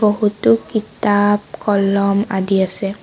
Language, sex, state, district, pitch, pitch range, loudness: Assamese, female, Assam, Sonitpur, 200 Hz, 195-210 Hz, -17 LUFS